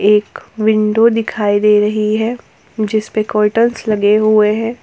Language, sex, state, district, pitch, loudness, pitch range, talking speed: Hindi, female, Jharkhand, Ranchi, 215 Hz, -14 LUFS, 210-225 Hz, 150 wpm